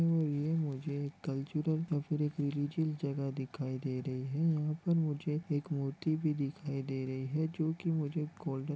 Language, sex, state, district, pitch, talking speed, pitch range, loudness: Hindi, male, Chhattisgarh, Bilaspur, 150 Hz, 180 wpm, 140-155 Hz, -35 LUFS